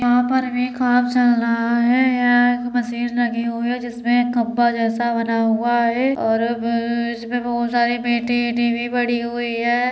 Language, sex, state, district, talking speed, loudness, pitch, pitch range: Hindi, female, Uttar Pradesh, Deoria, 200 wpm, -19 LUFS, 240 Hz, 235-245 Hz